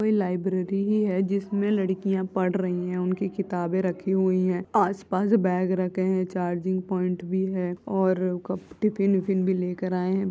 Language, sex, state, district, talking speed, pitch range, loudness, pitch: Hindi, female, Uttar Pradesh, Jyotiba Phule Nagar, 175 wpm, 185-195 Hz, -26 LUFS, 185 Hz